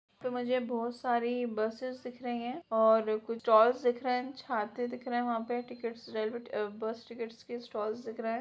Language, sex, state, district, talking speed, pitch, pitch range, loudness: Hindi, female, Bihar, Purnia, 215 wpm, 240 Hz, 225-245 Hz, -33 LUFS